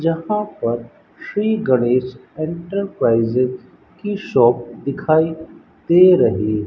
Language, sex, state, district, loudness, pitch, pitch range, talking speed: Hindi, male, Rajasthan, Bikaner, -18 LUFS, 155 Hz, 120-185 Hz, 100 wpm